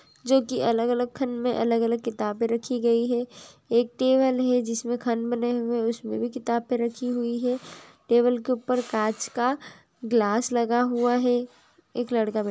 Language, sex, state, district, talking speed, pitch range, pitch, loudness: Hindi, female, Andhra Pradesh, Chittoor, 180 wpm, 230-245 Hz, 240 Hz, -25 LUFS